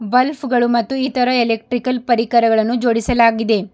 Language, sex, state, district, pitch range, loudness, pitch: Kannada, female, Karnataka, Bidar, 230-250 Hz, -16 LUFS, 240 Hz